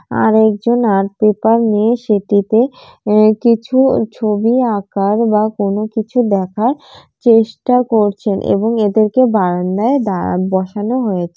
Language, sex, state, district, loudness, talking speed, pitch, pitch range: Bengali, female, West Bengal, Jalpaiguri, -14 LUFS, 110 wpm, 215 Hz, 205-235 Hz